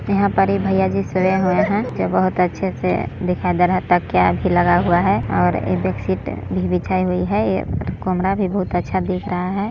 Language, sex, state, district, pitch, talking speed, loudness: Hindi, male, Chhattisgarh, Balrampur, 175 Hz, 230 wpm, -19 LUFS